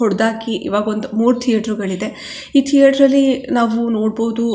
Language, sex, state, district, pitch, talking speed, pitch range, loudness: Kannada, female, Karnataka, Chamarajanagar, 230 Hz, 160 wpm, 220-265 Hz, -16 LUFS